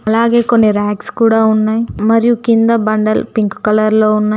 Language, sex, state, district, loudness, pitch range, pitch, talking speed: Telugu, female, Telangana, Mahabubabad, -12 LUFS, 215-230 Hz, 220 Hz, 165 wpm